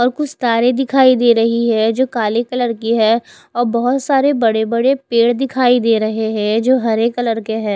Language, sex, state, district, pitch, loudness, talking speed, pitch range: Hindi, female, Odisha, Khordha, 235 Hz, -15 LUFS, 195 wpm, 225-255 Hz